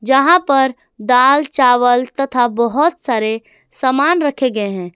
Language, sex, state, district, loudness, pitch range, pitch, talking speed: Hindi, female, Jharkhand, Garhwa, -14 LUFS, 235-275 Hz, 255 Hz, 135 wpm